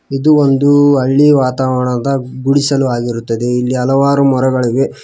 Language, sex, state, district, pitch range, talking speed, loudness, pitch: Kannada, male, Karnataka, Koppal, 125-140 Hz, 105 wpm, -12 LUFS, 135 Hz